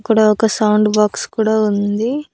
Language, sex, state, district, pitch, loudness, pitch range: Telugu, female, Andhra Pradesh, Annamaya, 215 Hz, -15 LUFS, 210-220 Hz